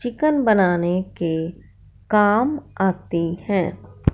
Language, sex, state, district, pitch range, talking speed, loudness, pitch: Hindi, female, Punjab, Fazilka, 160-210 Hz, 85 wpm, -21 LUFS, 180 Hz